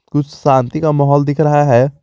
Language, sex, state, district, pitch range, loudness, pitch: Hindi, male, Jharkhand, Garhwa, 140-150 Hz, -13 LUFS, 145 Hz